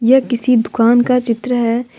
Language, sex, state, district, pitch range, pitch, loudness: Hindi, female, Jharkhand, Deoghar, 230-250 Hz, 240 Hz, -14 LUFS